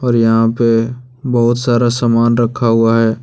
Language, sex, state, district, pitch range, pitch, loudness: Hindi, male, Jharkhand, Deoghar, 115-120 Hz, 120 Hz, -13 LUFS